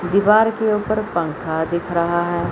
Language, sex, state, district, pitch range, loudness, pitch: Hindi, female, Chandigarh, Chandigarh, 170-215 Hz, -19 LUFS, 175 Hz